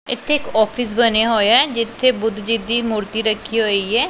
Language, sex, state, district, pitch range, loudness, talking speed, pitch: Punjabi, female, Punjab, Pathankot, 220-240 Hz, -17 LUFS, 205 wpm, 230 Hz